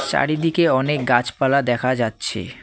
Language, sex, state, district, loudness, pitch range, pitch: Bengali, male, West Bengal, Cooch Behar, -19 LUFS, 120-140 Hz, 130 Hz